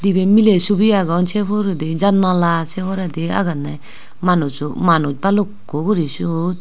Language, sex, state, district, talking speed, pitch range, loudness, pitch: Chakma, female, Tripura, Unakoti, 125 wpm, 165-200 Hz, -16 LUFS, 180 Hz